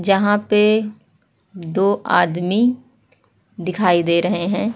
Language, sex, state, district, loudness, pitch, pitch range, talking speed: Hindi, female, Uttar Pradesh, Hamirpur, -18 LUFS, 195 Hz, 175-210 Hz, 100 wpm